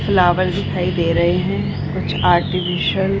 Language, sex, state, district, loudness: Hindi, female, Bihar, Darbhanga, -18 LUFS